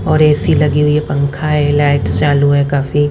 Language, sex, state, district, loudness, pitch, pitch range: Hindi, female, Haryana, Rohtak, -12 LUFS, 145 Hz, 140-150 Hz